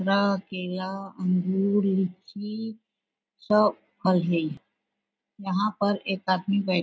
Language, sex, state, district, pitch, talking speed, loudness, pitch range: Chhattisgarhi, female, Chhattisgarh, Raigarh, 195 Hz, 105 wpm, -26 LUFS, 185-205 Hz